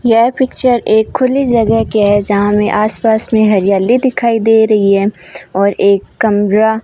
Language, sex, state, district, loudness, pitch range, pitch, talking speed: Hindi, female, Rajasthan, Bikaner, -12 LUFS, 205-230 Hz, 220 Hz, 175 wpm